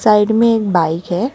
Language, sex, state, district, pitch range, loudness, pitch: Hindi, female, West Bengal, Alipurduar, 175-230 Hz, -14 LUFS, 210 Hz